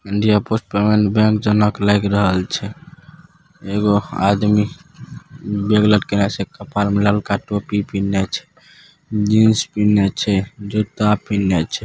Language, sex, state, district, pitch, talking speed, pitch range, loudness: Maithili, male, Bihar, Saharsa, 105 Hz, 120 wpm, 100-110 Hz, -17 LUFS